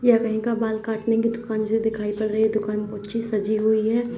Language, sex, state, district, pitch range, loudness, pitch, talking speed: Hindi, female, Uttar Pradesh, Jyotiba Phule Nagar, 215-230 Hz, -23 LUFS, 220 Hz, 260 wpm